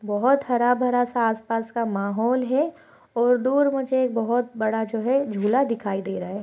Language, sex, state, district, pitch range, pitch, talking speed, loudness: Hindi, female, Chhattisgarh, Balrampur, 220-255 Hz, 240 Hz, 195 wpm, -23 LUFS